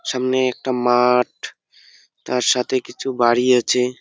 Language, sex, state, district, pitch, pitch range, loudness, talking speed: Bengali, male, West Bengal, Jalpaiguri, 125 Hz, 125-130 Hz, -18 LUFS, 120 wpm